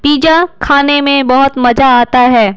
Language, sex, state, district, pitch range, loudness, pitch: Hindi, female, Bihar, Patna, 245-285 Hz, -9 LUFS, 275 Hz